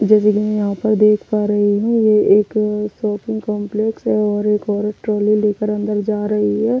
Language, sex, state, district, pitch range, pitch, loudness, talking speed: Hindi, female, Delhi, New Delhi, 210-215 Hz, 210 Hz, -17 LUFS, 200 wpm